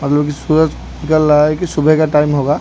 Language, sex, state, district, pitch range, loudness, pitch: Hindi, male, Odisha, Khordha, 145-155 Hz, -13 LUFS, 150 Hz